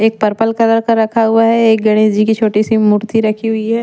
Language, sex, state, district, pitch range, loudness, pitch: Hindi, female, Punjab, Pathankot, 215-225 Hz, -12 LUFS, 220 Hz